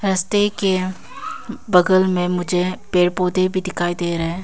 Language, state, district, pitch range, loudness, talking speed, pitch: Hindi, Arunachal Pradesh, Papum Pare, 180-185 Hz, -19 LUFS, 160 wpm, 185 Hz